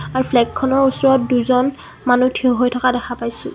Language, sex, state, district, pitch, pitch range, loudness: Assamese, female, Assam, Kamrup Metropolitan, 255 Hz, 245-260 Hz, -17 LUFS